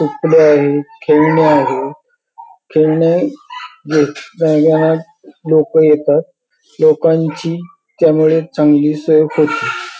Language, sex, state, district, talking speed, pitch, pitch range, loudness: Marathi, male, Maharashtra, Pune, 70 wpm, 160 Hz, 155-250 Hz, -13 LUFS